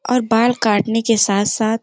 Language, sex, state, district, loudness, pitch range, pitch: Hindi, female, Uttar Pradesh, Gorakhpur, -16 LUFS, 210-230 Hz, 225 Hz